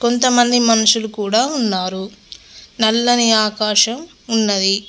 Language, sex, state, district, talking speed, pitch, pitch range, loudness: Telugu, female, Telangana, Mahabubabad, 85 wpm, 225 Hz, 210-240 Hz, -15 LUFS